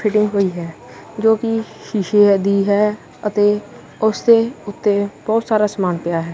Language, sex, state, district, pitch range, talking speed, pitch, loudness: Punjabi, male, Punjab, Kapurthala, 195-220 Hz, 160 wpm, 205 Hz, -17 LUFS